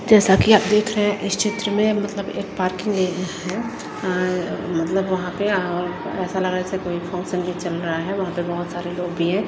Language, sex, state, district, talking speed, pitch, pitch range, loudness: Hindi, female, Himachal Pradesh, Shimla, 230 wpm, 185 Hz, 180-205 Hz, -22 LUFS